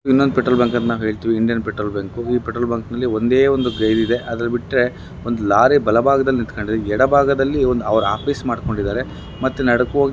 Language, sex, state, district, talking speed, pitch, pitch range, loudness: Kannada, male, Karnataka, Bellary, 170 wpm, 120 Hz, 110-130 Hz, -18 LUFS